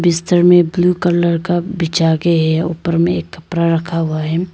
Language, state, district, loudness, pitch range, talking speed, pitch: Hindi, Arunachal Pradesh, Lower Dibang Valley, -15 LUFS, 165-175 Hz, 200 wpm, 170 Hz